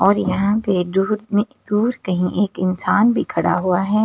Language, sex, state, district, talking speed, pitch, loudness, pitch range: Hindi, female, Delhi, New Delhi, 220 wpm, 200 Hz, -19 LUFS, 185-210 Hz